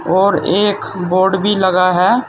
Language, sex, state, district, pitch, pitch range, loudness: Hindi, male, Uttar Pradesh, Saharanpur, 190 Hz, 185-200 Hz, -14 LUFS